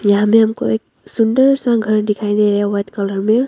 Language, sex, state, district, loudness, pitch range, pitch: Hindi, female, Arunachal Pradesh, Longding, -15 LUFS, 205-225 Hz, 210 Hz